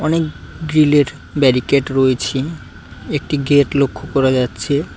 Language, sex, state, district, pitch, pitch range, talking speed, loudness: Bengali, male, West Bengal, Cooch Behar, 140 Hz, 130-150 Hz, 110 wpm, -16 LUFS